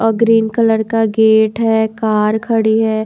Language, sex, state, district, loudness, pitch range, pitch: Hindi, female, Haryana, Charkhi Dadri, -13 LUFS, 220-225 Hz, 220 Hz